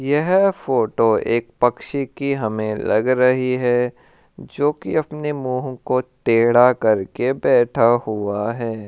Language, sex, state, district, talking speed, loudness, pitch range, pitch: Hindi, male, Rajasthan, Churu, 130 wpm, -19 LUFS, 115-135 Hz, 125 Hz